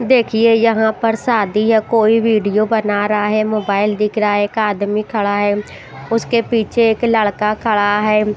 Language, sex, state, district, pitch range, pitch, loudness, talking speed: Hindi, female, Himachal Pradesh, Shimla, 210-225 Hz, 215 Hz, -15 LUFS, 170 wpm